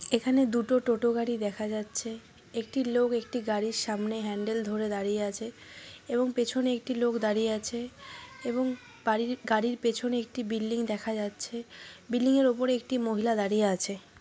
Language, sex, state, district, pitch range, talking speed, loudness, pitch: Bengali, female, West Bengal, Jhargram, 215-245 Hz, 150 wpm, -30 LUFS, 235 Hz